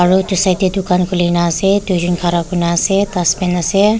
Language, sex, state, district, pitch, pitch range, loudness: Nagamese, female, Nagaland, Kohima, 180 Hz, 175-195 Hz, -15 LUFS